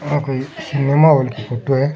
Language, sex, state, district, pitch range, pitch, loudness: Rajasthani, male, Rajasthan, Churu, 135-145 Hz, 140 Hz, -17 LUFS